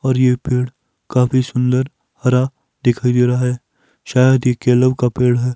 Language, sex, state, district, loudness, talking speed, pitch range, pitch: Hindi, male, Himachal Pradesh, Shimla, -16 LUFS, 175 wpm, 125-130 Hz, 125 Hz